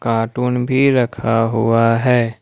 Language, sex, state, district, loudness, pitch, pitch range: Hindi, male, Jharkhand, Ranchi, -16 LUFS, 115 Hz, 115-125 Hz